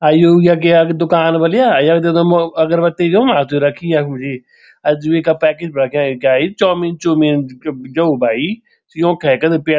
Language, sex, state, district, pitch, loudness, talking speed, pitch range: Garhwali, male, Uttarakhand, Tehri Garhwal, 165 Hz, -14 LUFS, 190 wpm, 150-170 Hz